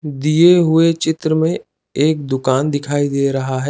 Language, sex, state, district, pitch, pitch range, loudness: Hindi, male, Chandigarh, Chandigarh, 150 Hz, 140-160 Hz, -15 LUFS